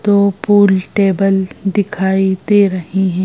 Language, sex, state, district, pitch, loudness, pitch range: Hindi, female, Madhya Pradesh, Bhopal, 195 Hz, -14 LUFS, 190-200 Hz